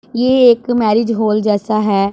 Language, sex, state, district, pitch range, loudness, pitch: Hindi, female, Punjab, Pathankot, 210-240 Hz, -13 LUFS, 220 Hz